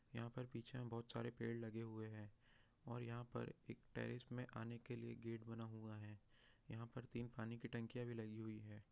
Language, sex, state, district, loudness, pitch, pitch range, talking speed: Hindi, male, Bihar, Jahanabad, -52 LUFS, 115 Hz, 115-120 Hz, 215 wpm